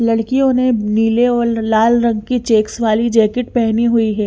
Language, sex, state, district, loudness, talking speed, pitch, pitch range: Hindi, female, Chandigarh, Chandigarh, -15 LUFS, 180 wpm, 230 Hz, 220-240 Hz